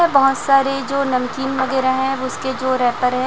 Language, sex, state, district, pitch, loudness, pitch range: Hindi, female, Chhattisgarh, Raipur, 265 Hz, -18 LUFS, 260-270 Hz